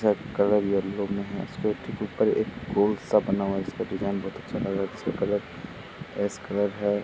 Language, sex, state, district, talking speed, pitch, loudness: Hindi, male, Uttar Pradesh, Muzaffarnagar, 205 wpm, 100 Hz, -27 LUFS